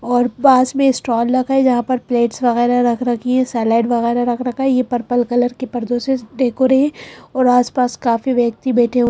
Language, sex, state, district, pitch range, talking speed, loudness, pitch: Hindi, female, Madhya Pradesh, Bhopal, 240-255 Hz, 205 wpm, -16 LUFS, 245 Hz